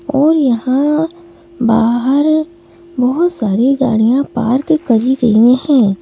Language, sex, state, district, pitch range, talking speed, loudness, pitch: Hindi, female, Madhya Pradesh, Bhopal, 235-315 Hz, 110 wpm, -13 LUFS, 265 Hz